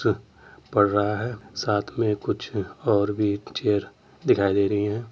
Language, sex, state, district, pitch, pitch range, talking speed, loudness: Hindi, male, Uttar Pradesh, Jyotiba Phule Nagar, 105 Hz, 100-105 Hz, 150 wpm, -24 LUFS